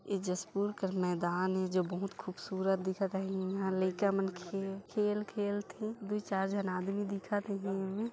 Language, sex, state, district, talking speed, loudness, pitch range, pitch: Hindi, female, Chhattisgarh, Jashpur, 175 wpm, -35 LUFS, 185-205 Hz, 195 Hz